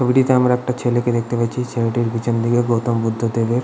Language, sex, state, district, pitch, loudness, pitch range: Bengali, male, West Bengal, Purulia, 120 Hz, -18 LUFS, 115-125 Hz